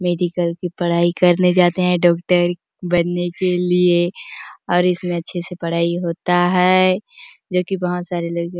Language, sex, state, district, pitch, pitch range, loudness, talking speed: Hindi, female, Chhattisgarh, Bastar, 175 Hz, 175-180 Hz, -18 LUFS, 160 wpm